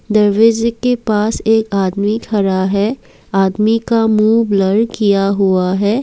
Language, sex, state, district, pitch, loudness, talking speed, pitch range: Hindi, female, Assam, Kamrup Metropolitan, 210 Hz, -14 LUFS, 140 wpm, 195-225 Hz